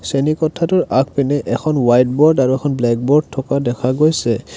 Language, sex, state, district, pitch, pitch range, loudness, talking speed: Assamese, male, Assam, Kamrup Metropolitan, 135 Hz, 125-150 Hz, -16 LUFS, 160 wpm